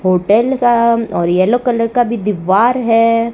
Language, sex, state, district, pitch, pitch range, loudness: Hindi, female, Rajasthan, Bikaner, 230 Hz, 195-240 Hz, -13 LUFS